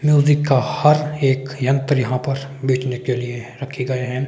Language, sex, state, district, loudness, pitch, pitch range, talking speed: Hindi, male, Himachal Pradesh, Shimla, -19 LUFS, 135 Hz, 125-140 Hz, 180 wpm